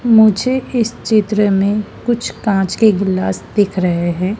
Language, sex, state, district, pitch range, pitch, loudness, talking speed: Hindi, female, Madhya Pradesh, Dhar, 190-220 Hz, 210 Hz, -15 LUFS, 150 wpm